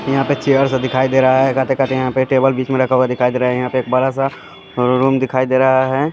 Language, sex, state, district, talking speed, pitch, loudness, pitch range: Hindi, male, Delhi, New Delhi, 285 wpm, 130 Hz, -15 LUFS, 130-135 Hz